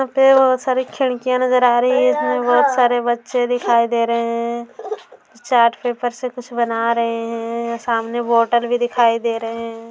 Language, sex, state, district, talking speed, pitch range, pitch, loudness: Hindi, female, Bihar, Saran, 190 wpm, 230-250 Hz, 235 Hz, -17 LUFS